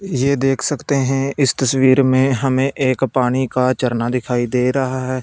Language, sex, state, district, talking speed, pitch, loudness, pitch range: Hindi, male, Punjab, Fazilka, 185 wpm, 130 Hz, -17 LUFS, 125-135 Hz